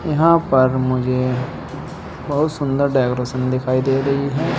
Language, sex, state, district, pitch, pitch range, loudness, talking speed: Hindi, male, Uttar Pradesh, Saharanpur, 135 Hz, 130-145 Hz, -18 LUFS, 130 wpm